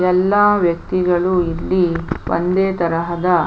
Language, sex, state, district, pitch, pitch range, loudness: Kannada, female, Karnataka, Chamarajanagar, 180 Hz, 170-185 Hz, -17 LUFS